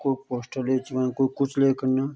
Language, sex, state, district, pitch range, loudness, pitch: Garhwali, male, Uttarakhand, Tehri Garhwal, 130-135 Hz, -25 LUFS, 130 Hz